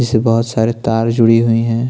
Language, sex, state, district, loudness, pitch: Hindi, male, Maharashtra, Chandrapur, -14 LUFS, 115 Hz